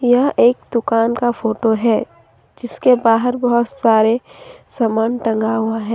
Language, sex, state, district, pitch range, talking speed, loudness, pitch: Hindi, female, Jharkhand, Deoghar, 225-245 Hz, 140 wpm, -16 LUFS, 230 Hz